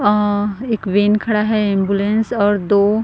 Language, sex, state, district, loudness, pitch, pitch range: Hindi, female, Chhattisgarh, Korba, -16 LUFS, 205 Hz, 205-215 Hz